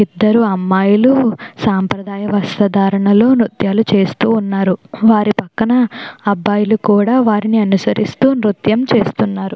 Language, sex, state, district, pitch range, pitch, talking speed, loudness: Telugu, female, Andhra Pradesh, Chittoor, 200-225 Hz, 210 Hz, 95 wpm, -14 LUFS